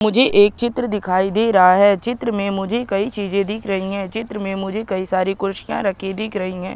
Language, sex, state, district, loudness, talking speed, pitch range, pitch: Hindi, male, Madhya Pradesh, Katni, -19 LUFS, 220 wpm, 195-220 Hz, 200 Hz